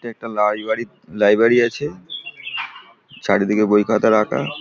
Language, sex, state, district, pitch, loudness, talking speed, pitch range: Bengali, male, West Bengal, Paschim Medinipur, 110 Hz, -18 LUFS, 130 wpm, 105-120 Hz